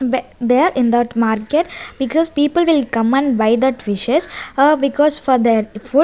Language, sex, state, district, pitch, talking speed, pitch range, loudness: English, female, Chandigarh, Chandigarh, 260 Hz, 180 wpm, 230-295 Hz, -16 LUFS